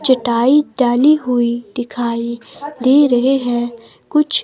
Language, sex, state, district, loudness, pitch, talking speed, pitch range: Hindi, female, Himachal Pradesh, Shimla, -15 LUFS, 245 Hz, 110 wpm, 240-280 Hz